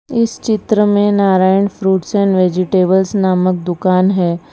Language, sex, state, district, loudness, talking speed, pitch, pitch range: Hindi, female, Gujarat, Valsad, -14 LUFS, 135 wpm, 190 Hz, 185-205 Hz